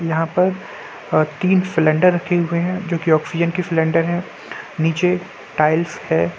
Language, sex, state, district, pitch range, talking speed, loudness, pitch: Hindi, male, Bihar, Gopalganj, 160-180 Hz, 160 wpm, -18 LUFS, 170 Hz